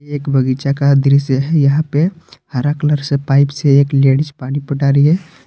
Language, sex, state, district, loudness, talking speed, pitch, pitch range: Hindi, male, Jharkhand, Palamu, -14 LUFS, 195 wpm, 140 Hz, 140-145 Hz